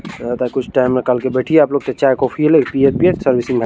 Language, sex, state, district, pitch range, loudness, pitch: Maithili, male, Bihar, Araria, 125-140 Hz, -15 LUFS, 130 Hz